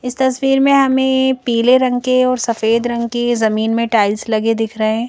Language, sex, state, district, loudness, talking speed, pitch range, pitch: Hindi, female, Madhya Pradesh, Bhopal, -15 LUFS, 210 wpm, 225-255 Hz, 240 Hz